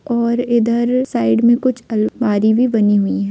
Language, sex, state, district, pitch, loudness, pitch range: Hindi, female, Jharkhand, Sahebganj, 235 Hz, -15 LUFS, 215-245 Hz